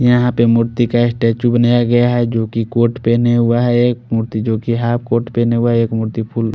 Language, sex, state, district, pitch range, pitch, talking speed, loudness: Hindi, male, Odisha, Khordha, 115-120 Hz, 120 Hz, 230 wpm, -15 LUFS